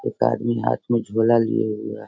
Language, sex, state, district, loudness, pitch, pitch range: Hindi, female, Bihar, Sitamarhi, -21 LUFS, 115 Hz, 105-115 Hz